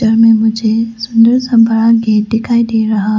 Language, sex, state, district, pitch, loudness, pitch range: Hindi, female, Arunachal Pradesh, Lower Dibang Valley, 225 Hz, -11 LUFS, 220-230 Hz